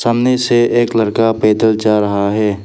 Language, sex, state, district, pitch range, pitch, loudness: Hindi, male, Arunachal Pradesh, Papum Pare, 105-120 Hz, 110 Hz, -13 LUFS